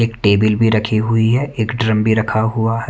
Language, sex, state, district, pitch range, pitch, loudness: Hindi, male, Haryana, Rohtak, 110-115 Hz, 110 Hz, -16 LUFS